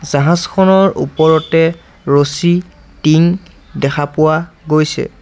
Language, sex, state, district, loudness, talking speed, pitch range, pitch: Assamese, male, Assam, Sonitpur, -13 LUFS, 80 wpm, 155-175 Hz, 160 Hz